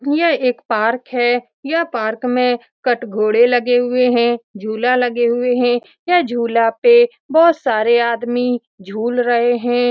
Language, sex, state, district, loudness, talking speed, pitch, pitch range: Hindi, female, Bihar, Saran, -16 LUFS, 150 wpm, 245 Hz, 235-250 Hz